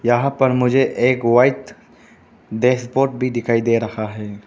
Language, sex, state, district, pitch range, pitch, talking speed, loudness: Hindi, male, Arunachal Pradesh, Papum Pare, 115-130 Hz, 120 Hz, 145 wpm, -17 LUFS